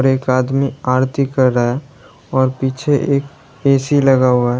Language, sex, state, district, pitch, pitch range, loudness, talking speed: Hindi, male, Uttar Pradesh, Lalitpur, 135 Hz, 130-140 Hz, -16 LUFS, 170 wpm